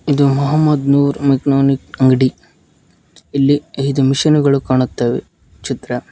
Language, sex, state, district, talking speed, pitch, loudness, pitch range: Kannada, male, Karnataka, Koppal, 110 wpm, 135 Hz, -15 LUFS, 130-140 Hz